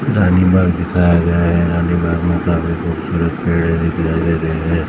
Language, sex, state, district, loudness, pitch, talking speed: Hindi, male, Maharashtra, Mumbai Suburban, -15 LUFS, 85 Hz, 160 wpm